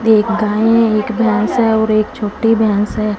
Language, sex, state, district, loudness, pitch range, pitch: Hindi, female, Punjab, Fazilka, -14 LUFS, 210-225 Hz, 215 Hz